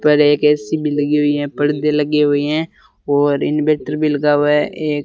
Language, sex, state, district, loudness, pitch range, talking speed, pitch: Hindi, male, Rajasthan, Bikaner, -16 LUFS, 145-150 Hz, 215 wpm, 150 Hz